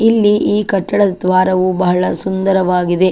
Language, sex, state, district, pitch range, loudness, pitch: Kannada, female, Karnataka, Chamarajanagar, 185-205 Hz, -14 LUFS, 185 Hz